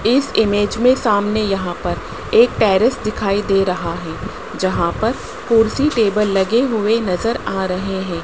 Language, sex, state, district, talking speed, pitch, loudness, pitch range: Hindi, male, Rajasthan, Jaipur, 160 wpm, 205 Hz, -17 LUFS, 190-230 Hz